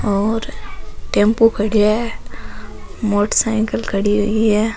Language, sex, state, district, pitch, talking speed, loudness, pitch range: Rajasthani, female, Rajasthan, Nagaur, 215 Hz, 100 wpm, -17 LUFS, 205-225 Hz